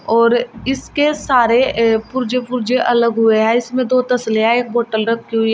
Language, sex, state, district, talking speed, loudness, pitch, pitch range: Hindi, female, Uttar Pradesh, Shamli, 195 wpm, -15 LUFS, 240 Hz, 225-250 Hz